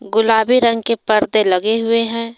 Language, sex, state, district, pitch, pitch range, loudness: Hindi, female, Jharkhand, Palamu, 225 Hz, 220-230 Hz, -15 LUFS